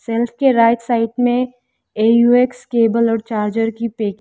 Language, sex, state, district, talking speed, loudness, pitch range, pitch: Hindi, female, Arunachal Pradesh, Lower Dibang Valley, 170 wpm, -16 LUFS, 225-245 Hz, 230 Hz